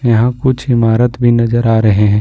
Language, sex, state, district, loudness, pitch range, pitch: Hindi, male, Jharkhand, Ranchi, -12 LUFS, 115-125 Hz, 120 Hz